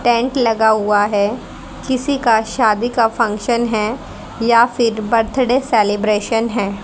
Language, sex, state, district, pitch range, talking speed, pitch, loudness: Hindi, female, Haryana, Charkhi Dadri, 215-240 Hz, 130 wpm, 225 Hz, -16 LUFS